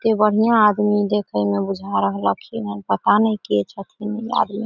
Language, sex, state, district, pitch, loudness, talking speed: Maithili, female, Bihar, Samastipur, 205 Hz, -19 LUFS, 180 wpm